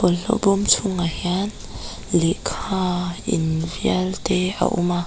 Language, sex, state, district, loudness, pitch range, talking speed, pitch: Mizo, female, Mizoram, Aizawl, -21 LUFS, 175-195 Hz, 120 wpm, 180 Hz